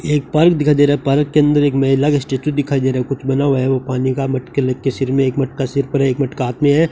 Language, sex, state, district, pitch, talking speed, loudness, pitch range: Hindi, male, Rajasthan, Bikaner, 135 Hz, 330 wpm, -16 LUFS, 130-145 Hz